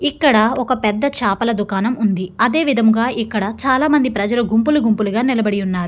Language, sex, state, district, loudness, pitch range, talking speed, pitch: Telugu, female, Andhra Pradesh, Chittoor, -16 LUFS, 210-255 Hz, 155 wpm, 230 Hz